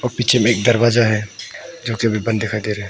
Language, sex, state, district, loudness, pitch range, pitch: Hindi, male, Arunachal Pradesh, Papum Pare, -17 LUFS, 105-120 Hz, 115 Hz